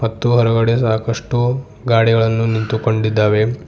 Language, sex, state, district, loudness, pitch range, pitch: Kannada, male, Karnataka, Bidar, -16 LUFS, 110-120 Hz, 115 Hz